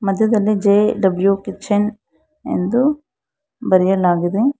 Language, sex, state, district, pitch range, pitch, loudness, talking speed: Kannada, female, Karnataka, Bangalore, 195-250 Hz, 210 Hz, -17 LUFS, 65 wpm